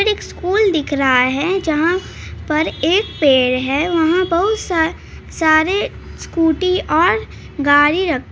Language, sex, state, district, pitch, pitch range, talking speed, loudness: Hindi, male, Bihar, Araria, 325 Hz, 290-370 Hz, 130 wpm, -16 LUFS